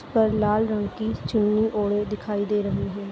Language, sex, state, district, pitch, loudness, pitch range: Hindi, female, Chhattisgarh, Raigarh, 210 Hz, -24 LUFS, 205-220 Hz